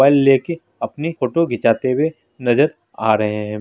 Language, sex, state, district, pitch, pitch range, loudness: Hindi, male, Bihar, Araria, 130 Hz, 115-155 Hz, -18 LUFS